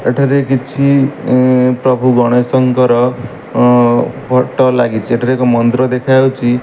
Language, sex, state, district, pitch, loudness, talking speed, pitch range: Odia, male, Odisha, Malkangiri, 125 Hz, -12 LUFS, 100 wpm, 125-130 Hz